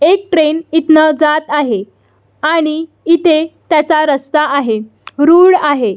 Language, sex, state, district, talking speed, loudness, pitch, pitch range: Marathi, female, Maharashtra, Solapur, 120 wpm, -12 LUFS, 310 Hz, 295-325 Hz